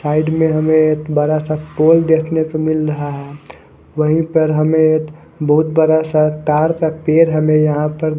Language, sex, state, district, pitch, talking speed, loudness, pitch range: Hindi, male, Haryana, Charkhi Dadri, 155 Hz, 145 wpm, -15 LUFS, 155-160 Hz